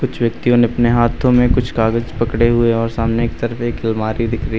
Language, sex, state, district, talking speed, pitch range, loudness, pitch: Hindi, male, Uttar Pradesh, Lucknow, 235 wpm, 115-120 Hz, -16 LUFS, 115 Hz